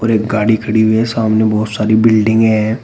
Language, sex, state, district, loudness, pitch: Hindi, male, Uttar Pradesh, Shamli, -13 LUFS, 110 Hz